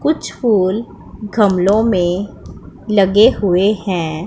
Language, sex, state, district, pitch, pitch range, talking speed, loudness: Hindi, female, Punjab, Pathankot, 200 Hz, 185-215 Hz, 100 wpm, -15 LUFS